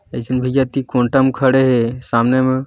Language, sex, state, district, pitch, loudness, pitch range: Hindi, male, Chhattisgarh, Bilaspur, 130 Hz, -16 LUFS, 125-135 Hz